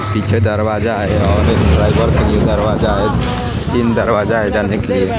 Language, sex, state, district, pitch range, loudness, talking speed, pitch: Hindi, male, Odisha, Nuapada, 100-110 Hz, -14 LUFS, 185 wpm, 105 Hz